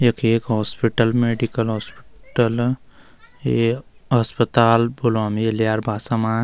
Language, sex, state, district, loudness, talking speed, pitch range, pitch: Garhwali, male, Uttarakhand, Uttarkashi, -20 LUFS, 105 wpm, 110-120 Hz, 115 Hz